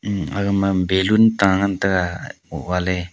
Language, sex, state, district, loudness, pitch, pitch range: Wancho, male, Arunachal Pradesh, Longding, -19 LUFS, 95 Hz, 90-100 Hz